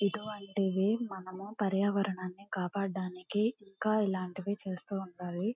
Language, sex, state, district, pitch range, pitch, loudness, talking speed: Telugu, female, Andhra Pradesh, Guntur, 185-205 Hz, 195 Hz, -34 LUFS, 85 wpm